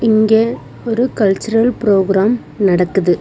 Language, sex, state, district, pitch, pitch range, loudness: Tamil, female, Tamil Nadu, Nilgiris, 215 Hz, 195-230 Hz, -14 LUFS